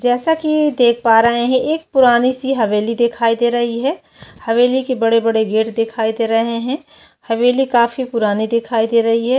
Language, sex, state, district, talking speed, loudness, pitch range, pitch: Hindi, female, Chhattisgarh, Kabirdham, 185 wpm, -16 LUFS, 225-260 Hz, 235 Hz